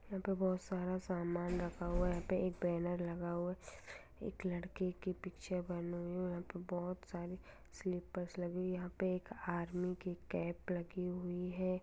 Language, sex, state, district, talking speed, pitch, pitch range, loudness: Hindi, female, Bihar, Darbhanga, 170 wpm, 180 Hz, 175-185 Hz, -41 LUFS